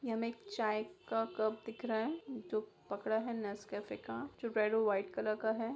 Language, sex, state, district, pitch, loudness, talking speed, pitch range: Hindi, female, Bihar, Begusarai, 220 Hz, -38 LUFS, 220 wpm, 215-230 Hz